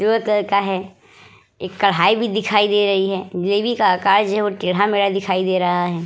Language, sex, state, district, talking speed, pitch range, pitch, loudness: Hindi, female, Uttar Pradesh, Budaun, 215 wpm, 185-205 Hz, 200 Hz, -18 LUFS